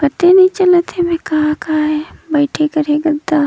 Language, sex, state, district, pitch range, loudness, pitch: Surgujia, female, Chhattisgarh, Sarguja, 300-350 Hz, -14 LUFS, 310 Hz